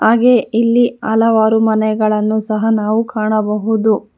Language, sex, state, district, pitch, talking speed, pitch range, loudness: Kannada, female, Karnataka, Bangalore, 220 Hz, 100 wpm, 215-225 Hz, -14 LUFS